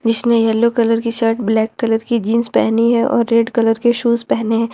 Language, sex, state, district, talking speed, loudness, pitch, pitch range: Hindi, female, Jharkhand, Ranchi, 230 wpm, -15 LUFS, 230 Hz, 225-235 Hz